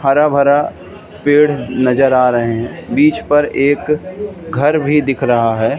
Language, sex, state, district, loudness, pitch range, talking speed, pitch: Hindi, male, Madhya Pradesh, Katni, -14 LUFS, 125-150 Hz, 155 wpm, 145 Hz